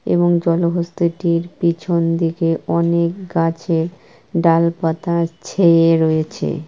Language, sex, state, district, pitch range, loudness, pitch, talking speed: Bengali, female, West Bengal, Kolkata, 165-170 Hz, -17 LUFS, 170 Hz, 100 wpm